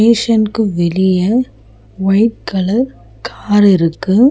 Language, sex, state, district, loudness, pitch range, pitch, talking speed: Tamil, female, Tamil Nadu, Chennai, -13 LUFS, 185-225 Hz, 200 Hz, 85 wpm